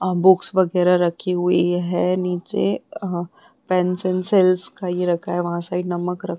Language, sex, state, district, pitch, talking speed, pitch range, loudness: Hindi, female, Bihar, Vaishali, 180 Hz, 170 wpm, 175-185 Hz, -20 LUFS